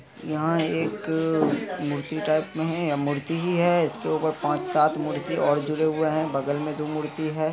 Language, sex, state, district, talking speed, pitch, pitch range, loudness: Hindi, male, Bihar, Araria, 190 wpm, 155 Hz, 150-160 Hz, -25 LUFS